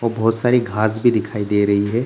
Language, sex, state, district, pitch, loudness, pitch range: Hindi, male, Bihar, Gaya, 110 Hz, -18 LUFS, 105-120 Hz